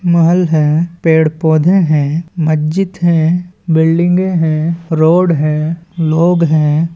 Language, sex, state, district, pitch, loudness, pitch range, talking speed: Chhattisgarhi, male, Chhattisgarh, Balrampur, 165 Hz, -12 LUFS, 155-175 Hz, 105 wpm